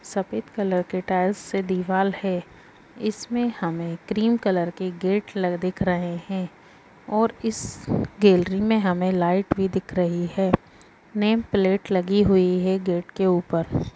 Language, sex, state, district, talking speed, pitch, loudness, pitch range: Hindi, female, Bihar, Saran, 150 wpm, 190 Hz, -23 LUFS, 180-200 Hz